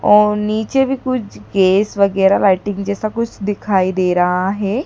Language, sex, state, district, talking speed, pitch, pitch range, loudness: Hindi, female, Madhya Pradesh, Dhar, 160 wpm, 205 Hz, 195-215 Hz, -16 LUFS